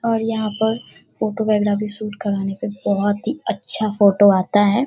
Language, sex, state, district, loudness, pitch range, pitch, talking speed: Hindi, female, Bihar, Darbhanga, -19 LUFS, 205-220 Hz, 210 Hz, 160 wpm